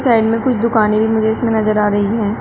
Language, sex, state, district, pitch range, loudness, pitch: Hindi, female, Uttar Pradesh, Shamli, 215-230 Hz, -15 LUFS, 220 Hz